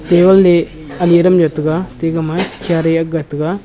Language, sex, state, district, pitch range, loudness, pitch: Wancho, male, Arunachal Pradesh, Longding, 160-180 Hz, -13 LUFS, 165 Hz